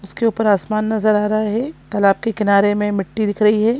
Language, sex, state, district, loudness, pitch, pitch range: Hindi, female, Chhattisgarh, Sukma, -17 LUFS, 215 Hz, 205-220 Hz